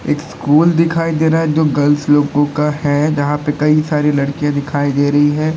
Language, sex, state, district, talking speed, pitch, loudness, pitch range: Hindi, male, Uttar Pradesh, Lalitpur, 215 wpm, 150 Hz, -14 LUFS, 145-155 Hz